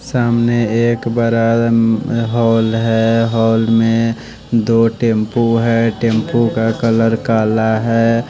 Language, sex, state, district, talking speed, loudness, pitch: Hindi, male, Bihar, West Champaran, 115 wpm, -14 LUFS, 115 Hz